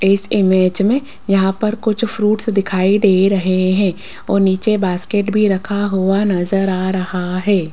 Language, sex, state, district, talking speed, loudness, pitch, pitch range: Hindi, female, Rajasthan, Jaipur, 165 wpm, -16 LUFS, 195 Hz, 185-205 Hz